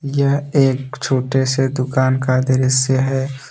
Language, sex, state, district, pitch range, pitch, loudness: Hindi, male, Jharkhand, Deoghar, 130-135 Hz, 130 Hz, -17 LUFS